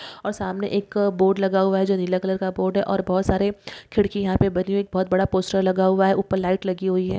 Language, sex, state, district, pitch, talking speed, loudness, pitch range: Hindi, female, Maharashtra, Nagpur, 190 Hz, 260 wpm, -22 LUFS, 185-200 Hz